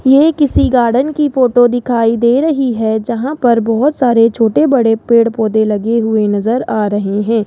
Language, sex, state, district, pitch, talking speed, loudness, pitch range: Hindi, male, Rajasthan, Jaipur, 235 Hz, 185 wpm, -12 LUFS, 225-260 Hz